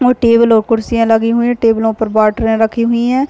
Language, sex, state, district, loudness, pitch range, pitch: Hindi, female, Chhattisgarh, Raigarh, -12 LUFS, 225-235 Hz, 230 Hz